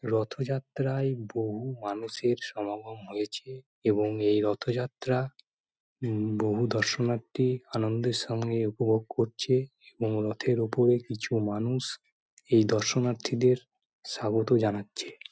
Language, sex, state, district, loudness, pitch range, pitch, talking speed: Bengali, male, West Bengal, Malda, -29 LUFS, 110-125 Hz, 115 Hz, 100 wpm